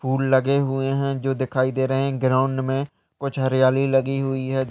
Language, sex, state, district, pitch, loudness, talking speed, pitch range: Hindi, male, Uttar Pradesh, Budaun, 135 Hz, -22 LUFS, 205 wpm, 130-135 Hz